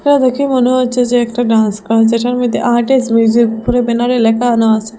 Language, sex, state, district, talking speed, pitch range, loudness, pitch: Bengali, female, Assam, Hailakandi, 215 wpm, 225-250 Hz, -12 LUFS, 240 Hz